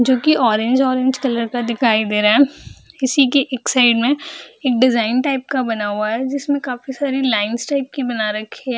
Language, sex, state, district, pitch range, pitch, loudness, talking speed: Hindi, female, Bihar, Jahanabad, 235-270 Hz, 255 Hz, -17 LUFS, 220 wpm